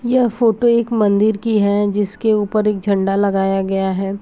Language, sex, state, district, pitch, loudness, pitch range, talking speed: Hindi, female, Bihar, Jahanabad, 205 Hz, -16 LUFS, 195-220 Hz, 185 wpm